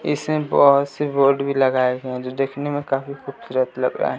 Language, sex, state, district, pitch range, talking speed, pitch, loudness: Hindi, male, Bihar, West Champaran, 130-140 Hz, 215 wpm, 140 Hz, -20 LUFS